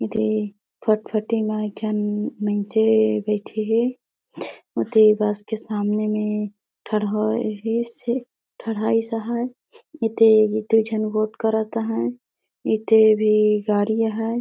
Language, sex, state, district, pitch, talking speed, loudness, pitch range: Surgujia, female, Chhattisgarh, Sarguja, 215 Hz, 110 wpm, -21 LUFS, 210-225 Hz